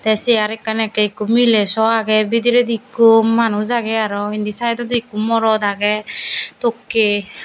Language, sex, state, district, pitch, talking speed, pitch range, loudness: Chakma, female, Tripura, Dhalai, 225 Hz, 160 wpm, 210-235 Hz, -16 LUFS